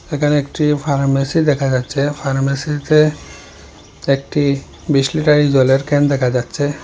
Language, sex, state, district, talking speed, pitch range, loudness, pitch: Bengali, male, Assam, Hailakandi, 115 wpm, 135-150 Hz, -16 LUFS, 145 Hz